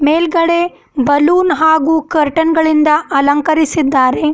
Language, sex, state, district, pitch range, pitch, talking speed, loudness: Kannada, female, Karnataka, Bidar, 295-325 Hz, 315 Hz, 85 wpm, -12 LUFS